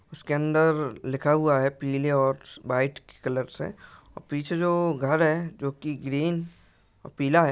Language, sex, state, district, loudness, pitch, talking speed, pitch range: Hindi, male, Maharashtra, Pune, -26 LUFS, 145 Hz, 150 wpm, 135-160 Hz